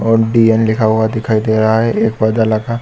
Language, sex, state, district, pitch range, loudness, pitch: Hindi, male, Jharkhand, Sahebganj, 110-115 Hz, -13 LUFS, 110 Hz